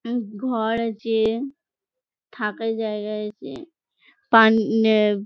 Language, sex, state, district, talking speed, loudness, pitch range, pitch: Bengali, female, West Bengal, Jhargram, 105 wpm, -21 LUFS, 215-240 Hz, 225 Hz